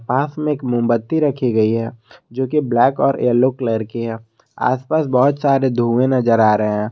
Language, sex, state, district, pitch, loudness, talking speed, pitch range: Hindi, male, Jharkhand, Garhwa, 125 Hz, -17 LUFS, 190 wpm, 115-135 Hz